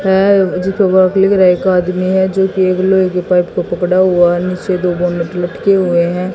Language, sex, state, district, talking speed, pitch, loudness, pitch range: Hindi, female, Haryana, Jhajjar, 180 wpm, 185 Hz, -13 LUFS, 180-190 Hz